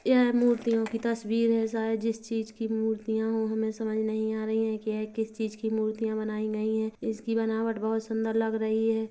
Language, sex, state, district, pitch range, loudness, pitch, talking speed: Hindi, female, Chhattisgarh, Kabirdham, 220-225 Hz, -29 LUFS, 220 Hz, 225 wpm